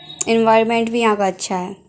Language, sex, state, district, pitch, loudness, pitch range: Hindi, female, Bihar, Muzaffarpur, 225 Hz, -17 LUFS, 190-230 Hz